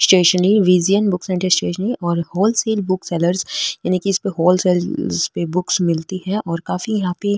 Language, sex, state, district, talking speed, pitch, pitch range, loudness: Marwari, female, Rajasthan, Nagaur, 185 wpm, 185 Hz, 175-200 Hz, -18 LUFS